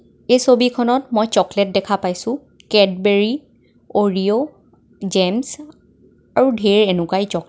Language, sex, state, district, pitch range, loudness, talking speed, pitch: Assamese, female, Assam, Kamrup Metropolitan, 195-250 Hz, -17 LUFS, 130 wpm, 210 Hz